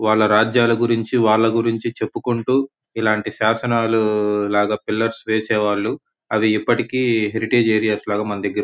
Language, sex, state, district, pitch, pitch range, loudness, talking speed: Telugu, male, Andhra Pradesh, Guntur, 110 Hz, 105-115 Hz, -19 LUFS, 130 wpm